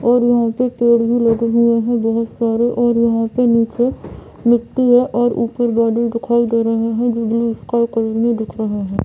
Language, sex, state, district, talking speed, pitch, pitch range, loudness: Hindi, female, Jharkhand, Jamtara, 185 wpm, 235 Hz, 230-240 Hz, -16 LUFS